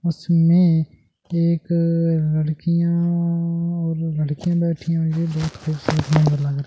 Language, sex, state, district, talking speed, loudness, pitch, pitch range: Hindi, male, Delhi, New Delhi, 155 wpm, -20 LUFS, 165 Hz, 155-170 Hz